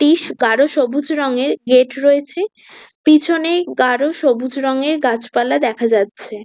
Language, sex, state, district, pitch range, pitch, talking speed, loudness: Bengali, female, West Bengal, Kolkata, 250-305 Hz, 275 Hz, 120 wpm, -15 LUFS